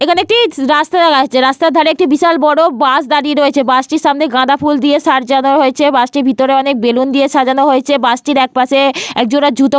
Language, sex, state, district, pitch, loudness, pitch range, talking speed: Bengali, female, Jharkhand, Sahebganj, 280 Hz, -11 LUFS, 265-300 Hz, 210 wpm